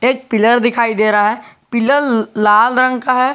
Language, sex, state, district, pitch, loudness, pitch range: Hindi, male, Jharkhand, Garhwa, 235 Hz, -13 LUFS, 215-255 Hz